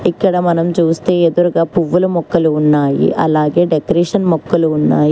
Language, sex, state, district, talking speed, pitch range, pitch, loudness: Telugu, female, Telangana, Hyderabad, 130 wpm, 160-175 Hz, 170 Hz, -13 LUFS